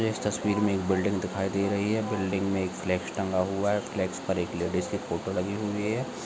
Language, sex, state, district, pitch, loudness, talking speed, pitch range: Hindi, male, Maharashtra, Dhule, 95 Hz, -29 LUFS, 240 wpm, 95-105 Hz